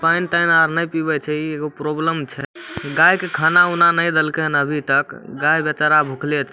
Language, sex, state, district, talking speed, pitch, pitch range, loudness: Maithili, male, Bihar, Samastipur, 220 wpm, 155 Hz, 150-165 Hz, -17 LUFS